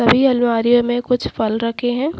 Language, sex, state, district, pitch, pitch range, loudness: Hindi, female, Delhi, New Delhi, 240 Hz, 230-245 Hz, -17 LUFS